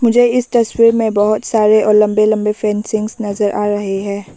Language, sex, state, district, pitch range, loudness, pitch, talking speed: Hindi, female, Arunachal Pradesh, Lower Dibang Valley, 205-225 Hz, -14 LUFS, 215 Hz, 190 wpm